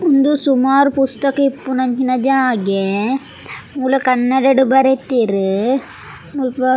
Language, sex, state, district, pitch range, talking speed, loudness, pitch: Tulu, female, Karnataka, Dakshina Kannada, 255-270 Hz, 80 wpm, -15 LUFS, 265 Hz